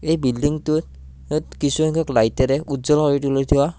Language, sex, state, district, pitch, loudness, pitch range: Assamese, male, Assam, Kamrup Metropolitan, 145 Hz, -20 LUFS, 130-155 Hz